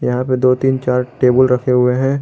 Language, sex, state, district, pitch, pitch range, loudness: Hindi, male, Jharkhand, Garhwa, 125 Hz, 125-130 Hz, -14 LUFS